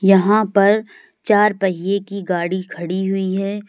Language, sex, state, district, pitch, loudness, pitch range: Hindi, female, Uttar Pradesh, Lalitpur, 195 Hz, -18 LUFS, 190-205 Hz